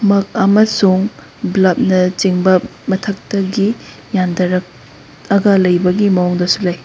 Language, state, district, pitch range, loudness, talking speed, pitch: Manipuri, Manipur, Imphal West, 180-200 Hz, -14 LUFS, 95 wpm, 190 Hz